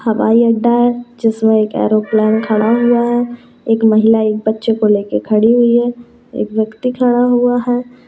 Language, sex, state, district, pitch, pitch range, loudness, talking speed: Kumaoni, female, Uttarakhand, Tehri Garhwal, 230 Hz, 220-240 Hz, -13 LUFS, 170 wpm